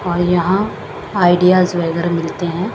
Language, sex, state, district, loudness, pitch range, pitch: Hindi, female, Chandigarh, Chandigarh, -16 LUFS, 175-185 Hz, 175 Hz